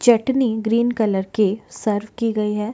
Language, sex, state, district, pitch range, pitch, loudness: Hindi, female, Chhattisgarh, Bastar, 210-235 Hz, 220 Hz, -20 LUFS